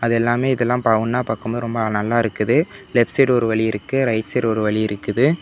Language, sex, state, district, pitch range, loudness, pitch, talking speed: Tamil, male, Tamil Nadu, Namakkal, 110-125 Hz, -19 LUFS, 115 Hz, 210 wpm